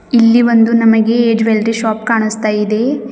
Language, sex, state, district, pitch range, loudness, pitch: Kannada, female, Karnataka, Bidar, 220-235 Hz, -12 LUFS, 225 Hz